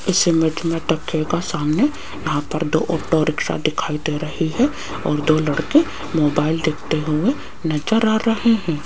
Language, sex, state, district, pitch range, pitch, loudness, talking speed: Hindi, female, Rajasthan, Jaipur, 155-195 Hz, 160 Hz, -20 LUFS, 165 wpm